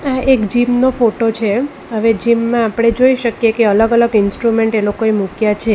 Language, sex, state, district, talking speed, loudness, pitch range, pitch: Gujarati, female, Gujarat, Valsad, 210 wpm, -14 LUFS, 220-240 Hz, 230 Hz